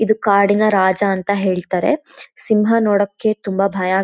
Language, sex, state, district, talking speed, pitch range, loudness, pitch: Kannada, female, Karnataka, Shimoga, 150 wpm, 190-215 Hz, -16 LUFS, 200 Hz